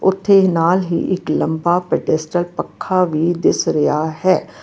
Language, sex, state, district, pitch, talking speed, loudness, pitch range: Punjabi, female, Karnataka, Bangalore, 175 Hz, 145 wpm, -17 LUFS, 160-185 Hz